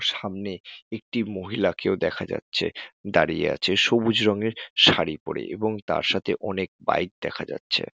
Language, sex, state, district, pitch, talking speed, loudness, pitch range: Bengali, male, West Bengal, Jalpaiguri, 105 Hz, 150 wpm, -24 LUFS, 95-110 Hz